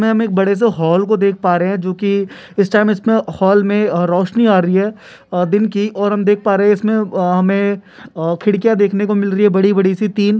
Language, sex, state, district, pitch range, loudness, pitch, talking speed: Hindi, male, Uttar Pradesh, Etah, 190-210 Hz, -15 LUFS, 200 Hz, 240 wpm